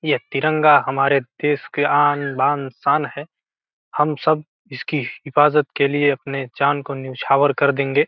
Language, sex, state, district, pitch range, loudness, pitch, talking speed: Hindi, male, Bihar, Gopalganj, 140-150 Hz, -19 LUFS, 145 Hz, 155 wpm